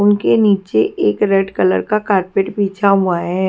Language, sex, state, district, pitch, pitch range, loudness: Hindi, female, Haryana, Jhajjar, 195 Hz, 190-205 Hz, -15 LUFS